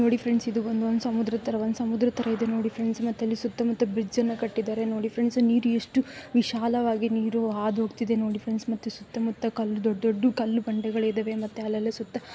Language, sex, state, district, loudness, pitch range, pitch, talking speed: Kannada, female, Karnataka, Gulbarga, -27 LUFS, 220-235 Hz, 230 Hz, 185 wpm